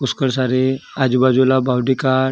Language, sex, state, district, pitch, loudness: Marathi, male, Maharashtra, Gondia, 130 Hz, -17 LUFS